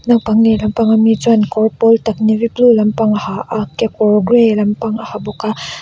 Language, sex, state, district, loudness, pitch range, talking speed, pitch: Mizo, female, Mizoram, Aizawl, -13 LUFS, 215-230 Hz, 215 wpm, 220 Hz